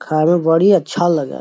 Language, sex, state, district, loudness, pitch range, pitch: Magahi, male, Bihar, Lakhisarai, -14 LUFS, 155-175 Hz, 165 Hz